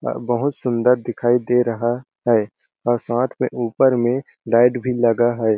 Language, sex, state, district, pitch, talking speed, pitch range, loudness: Hindi, male, Chhattisgarh, Balrampur, 120 Hz, 170 wpm, 115-125 Hz, -19 LUFS